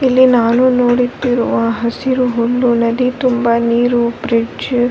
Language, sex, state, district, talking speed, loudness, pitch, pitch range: Kannada, female, Karnataka, Bellary, 120 wpm, -14 LUFS, 245 Hz, 235-250 Hz